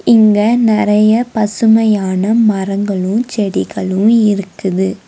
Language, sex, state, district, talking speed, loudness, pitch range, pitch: Tamil, female, Tamil Nadu, Nilgiris, 70 wpm, -13 LUFS, 195-225 Hz, 210 Hz